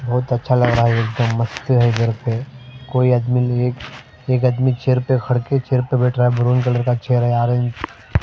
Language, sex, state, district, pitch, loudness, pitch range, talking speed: Hindi, male, Maharashtra, Mumbai Suburban, 125 Hz, -18 LUFS, 120-125 Hz, 220 wpm